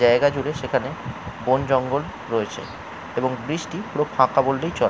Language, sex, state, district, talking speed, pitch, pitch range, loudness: Bengali, male, West Bengal, Jalpaiguri, 125 wpm, 135 Hz, 120-145 Hz, -23 LUFS